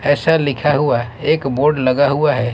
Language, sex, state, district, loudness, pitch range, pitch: Hindi, male, Maharashtra, Mumbai Suburban, -16 LUFS, 130-150 Hz, 145 Hz